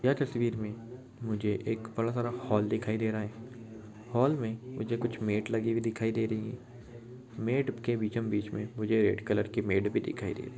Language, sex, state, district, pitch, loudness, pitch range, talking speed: Hindi, male, Maharashtra, Sindhudurg, 115 Hz, -32 LUFS, 110-120 Hz, 205 wpm